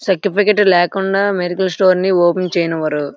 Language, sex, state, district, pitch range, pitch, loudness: Telugu, male, Andhra Pradesh, Srikakulam, 175-195 Hz, 185 Hz, -15 LUFS